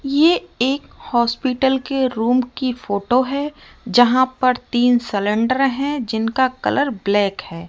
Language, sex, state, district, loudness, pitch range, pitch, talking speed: Hindi, female, Rajasthan, Jaipur, -18 LUFS, 230-265 Hz, 255 Hz, 135 wpm